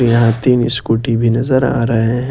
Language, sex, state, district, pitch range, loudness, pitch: Hindi, male, Jharkhand, Ranchi, 115-125 Hz, -14 LUFS, 115 Hz